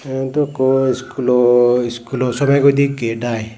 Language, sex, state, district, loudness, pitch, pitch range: Chakma, male, Tripura, Dhalai, -16 LUFS, 130 Hz, 120-135 Hz